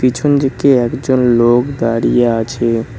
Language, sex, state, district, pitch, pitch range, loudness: Bengali, male, West Bengal, Cooch Behar, 120 Hz, 115-135 Hz, -13 LUFS